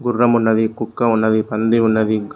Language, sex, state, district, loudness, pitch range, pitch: Telugu, male, Telangana, Mahabubabad, -16 LUFS, 110-115 Hz, 110 Hz